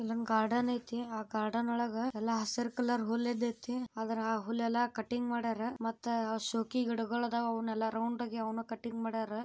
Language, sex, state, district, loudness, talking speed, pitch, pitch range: Kannada, female, Karnataka, Bijapur, -35 LUFS, 100 wpm, 230 Hz, 225-240 Hz